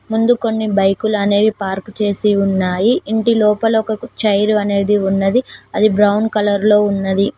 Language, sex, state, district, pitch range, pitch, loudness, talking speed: Telugu, female, Telangana, Mahabubabad, 200-220 Hz, 210 Hz, -15 LUFS, 155 wpm